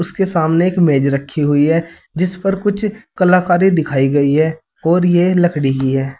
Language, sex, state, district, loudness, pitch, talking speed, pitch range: Hindi, male, Uttar Pradesh, Saharanpur, -15 LUFS, 170 Hz, 185 wpm, 145-180 Hz